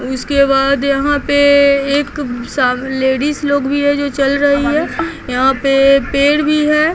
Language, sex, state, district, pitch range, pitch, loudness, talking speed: Hindi, female, Bihar, Patna, 270-290 Hz, 280 Hz, -13 LUFS, 155 wpm